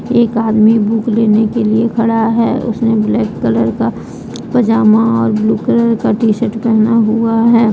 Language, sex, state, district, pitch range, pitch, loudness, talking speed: Hindi, female, Jharkhand, Deoghar, 220-230 Hz, 225 Hz, -12 LUFS, 180 wpm